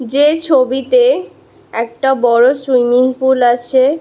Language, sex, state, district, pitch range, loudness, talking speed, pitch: Bengali, female, West Bengal, Malda, 245-280 Hz, -13 LUFS, 105 wpm, 260 Hz